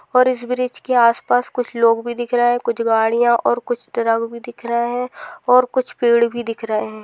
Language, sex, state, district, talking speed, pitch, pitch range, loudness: Hindi, female, Rajasthan, Nagaur, 240 wpm, 240 Hz, 235-245 Hz, -18 LUFS